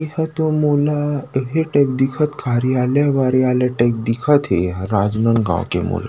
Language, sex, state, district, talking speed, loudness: Chhattisgarhi, male, Chhattisgarh, Rajnandgaon, 140 wpm, -18 LUFS